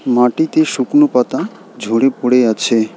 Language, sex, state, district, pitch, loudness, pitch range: Bengali, male, West Bengal, Alipurduar, 125 Hz, -14 LUFS, 120-145 Hz